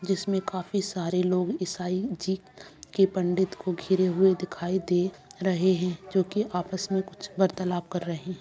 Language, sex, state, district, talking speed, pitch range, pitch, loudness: Hindi, female, Bihar, Jamui, 170 wpm, 180-190 Hz, 185 Hz, -27 LUFS